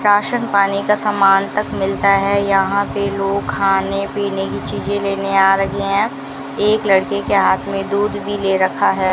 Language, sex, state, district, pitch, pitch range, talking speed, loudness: Hindi, female, Rajasthan, Bikaner, 195 Hz, 195-200 Hz, 185 wpm, -17 LUFS